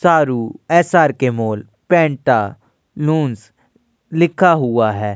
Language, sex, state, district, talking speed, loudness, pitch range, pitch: Hindi, male, Uttar Pradesh, Jyotiba Phule Nagar, 80 wpm, -16 LUFS, 110-160 Hz, 130 Hz